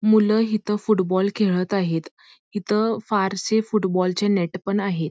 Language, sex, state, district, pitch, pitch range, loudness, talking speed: Marathi, female, Karnataka, Belgaum, 200 Hz, 185-215 Hz, -22 LUFS, 105 wpm